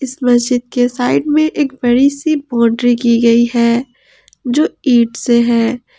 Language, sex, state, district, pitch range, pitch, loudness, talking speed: Hindi, female, Jharkhand, Ranchi, 235-275 Hz, 245 Hz, -13 LUFS, 150 wpm